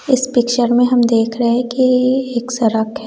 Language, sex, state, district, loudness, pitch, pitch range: Hindi, female, Bihar, West Champaran, -15 LUFS, 245 Hz, 235-255 Hz